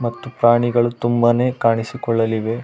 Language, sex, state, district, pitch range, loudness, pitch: Kannada, male, Karnataka, Raichur, 115-120 Hz, -18 LUFS, 120 Hz